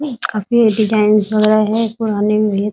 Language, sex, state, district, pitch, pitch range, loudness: Hindi, female, Bihar, Muzaffarpur, 215 Hz, 210-225 Hz, -15 LUFS